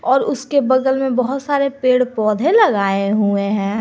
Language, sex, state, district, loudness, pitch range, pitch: Hindi, female, Jharkhand, Garhwa, -16 LUFS, 210-270 Hz, 255 Hz